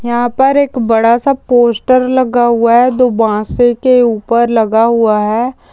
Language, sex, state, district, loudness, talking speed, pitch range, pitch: Hindi, female, Bihar, Jamui, -11 LUFS, 155 wpm, 230-255 Hz, 240 Hz